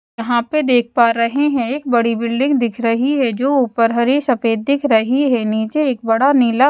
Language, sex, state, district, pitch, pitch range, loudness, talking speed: Hindi, female, Odisha, Sambalpur, 245 Hz, 230-275 Hz, -16 LUFS, 215 wpm